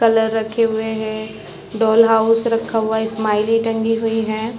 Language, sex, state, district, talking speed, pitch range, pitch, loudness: Hindi, female, Chhattisgarh, Rajnandgaon, 170 wpm, 220-225 Hz, 225 Hz, -18 LUFS